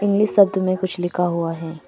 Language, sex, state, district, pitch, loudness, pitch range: Hindi, female, Arunachal Pradesh, Papum Pare, 185 Hz, -19 LUFS, 170-200 Hz